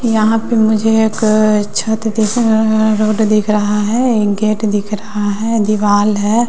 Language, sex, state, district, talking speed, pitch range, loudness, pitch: Hindi, female, Bihar, West Champaran, 155 wpm, 210-220 Hz, -13 LUFS, 215 Hz